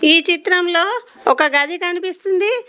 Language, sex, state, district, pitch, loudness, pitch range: Telugu, female, Telangana, Komaram Bheem, 355 Hz, -16 LUFS, 335-390 Hz